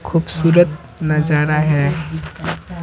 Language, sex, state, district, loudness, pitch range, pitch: Hindi, male, Bihar, Patna, -17 LUFS, 150-165 Hz, 155 Hz